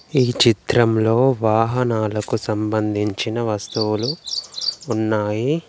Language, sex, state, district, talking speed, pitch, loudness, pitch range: Telugu, male, Telangana, Komaram Bheem, 65 wpm, 110 Hz, -20 LUFS, 110-120 Hz